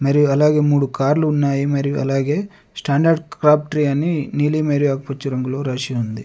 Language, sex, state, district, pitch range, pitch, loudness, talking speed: Telugu, male, Telangana, Adilabad, 135-150 Hz, 145 Hz, -18 LUFS, 155 wpm